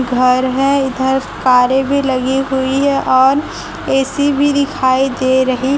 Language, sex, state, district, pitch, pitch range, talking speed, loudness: Hindi, female, Chhattisgarh, Raipur, 265 Hz, 260-275 Hz, 145 wpm, -14 LUFS